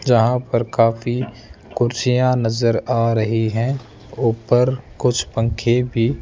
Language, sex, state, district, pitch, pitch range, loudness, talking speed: Hindi, male, Rajasthan, Jaipur, 115 Hz, 115-125 Hz, -19 LUFS, 125 wpm